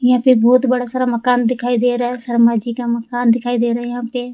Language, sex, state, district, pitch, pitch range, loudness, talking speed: Hindi, female, Rajasthan, Jaipur, 245 Hz, 235-250 Hz, -16 LUFS, 305 wpm